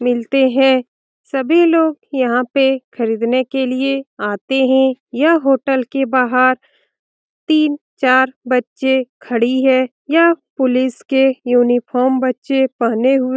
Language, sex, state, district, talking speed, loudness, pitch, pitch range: Hindi, female, Bihar, Lakhisarai, 130 wpm, -15 LUFS, 260 Hz, 255-270 Hz